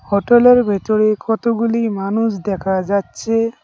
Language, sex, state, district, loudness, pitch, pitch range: Bengali, male, West Bengal, Cooch Behar, -16 LUFS, 220 Hz, 200-230 Hz